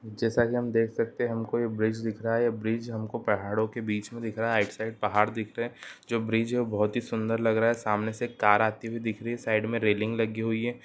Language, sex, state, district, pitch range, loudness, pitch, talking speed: Hindi, male, Uttarakhand, Uttarkashi, 110-115 Hz, -28 LUFS, 115 Hz, 295 wpm